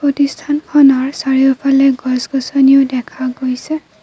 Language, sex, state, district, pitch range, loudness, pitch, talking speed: Assamese, female, Assam, Kamrup Metropolitan, 260-285 Hz, -13 LUFS, 270 Hz, 105 wpm